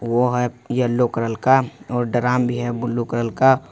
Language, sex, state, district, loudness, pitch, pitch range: Hindi, male, Jharkhand, Ranchi, -20 LUFS, 120 Hz, 120-125 Hz